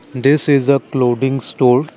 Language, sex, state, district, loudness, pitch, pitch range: English, male, Assam, Kamrup Metropolitan, -14 LUFS, 135 Hz, 125-140 Hz